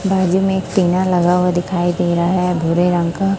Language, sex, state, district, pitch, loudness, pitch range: Hindi, female, Chhattisgarh, Raipur, 180 Hz, -16 LUFS, 175-185 Hz